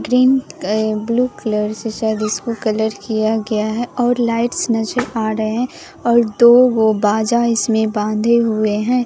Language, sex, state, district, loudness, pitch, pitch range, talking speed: Hindi, male, Bihar, Katihar, -17 LUFS, 225 Hz, 215-240 Hz, 160 wpm